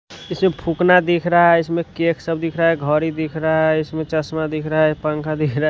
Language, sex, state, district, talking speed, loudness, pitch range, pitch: Hindi, male, Punjab, Fazilka, 240 wpm, -18 LUFS, 155-170 Hz, 160 Hz